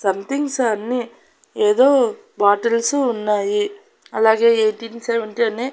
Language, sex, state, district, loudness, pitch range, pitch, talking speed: Telugu, female, Andhra Pradesh, Annamaya, -18 LUFS, 220-275 Hz, 230 Hz, 95 wpm